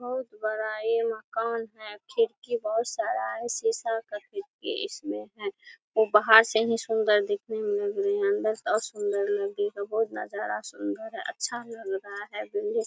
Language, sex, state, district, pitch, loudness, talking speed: Hindi, female, Chhattisgarh, Korba, 225 Hz, -28 LUFS, 175 wpm